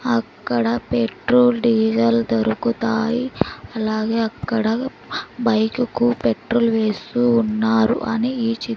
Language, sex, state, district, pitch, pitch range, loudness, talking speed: Telugu, female, Andhra Pradesh, Sri Satya Sai, 225 Hz, 205-235 Hz, -20 LUFS, 95 wpm